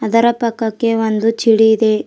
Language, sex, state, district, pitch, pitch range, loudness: Kannada, female, Karnataka, Bidar, 225 Hz, 220-230 Hz, -14 LUFS